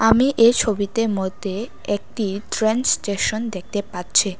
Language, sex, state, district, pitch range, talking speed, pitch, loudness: Bengali, female, Tripura, West Tripura, 195-225 Hz, 110 wpm, 210 Hz, -20 LUFS